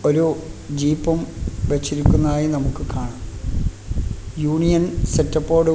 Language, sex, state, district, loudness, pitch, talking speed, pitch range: Malayalam, male, Kerala, Kasaragod, -21 LUFS, 145 Hz, 85 wpm, 105-155 Hz